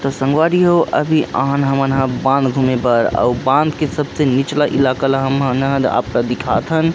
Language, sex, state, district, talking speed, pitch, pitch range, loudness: Chhattisgarhi, male, Chhattisgarh, Rajnandgaon, 140 wpm, 135 Hz, 130-150 Hz, -16 LUFS